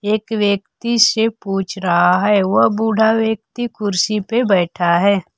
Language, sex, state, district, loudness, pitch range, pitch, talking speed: Hindi, female, Bihar, Kaimur, -16 LUFS, 190-220 Hz, 205 Hz, 145 wpm